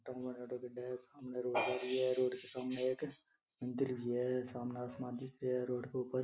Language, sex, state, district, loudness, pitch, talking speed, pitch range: Marwari, male, Rajasthan, Nagaur, -40 LUFS, 125 Hz, 210 wpm, 125-130 Hz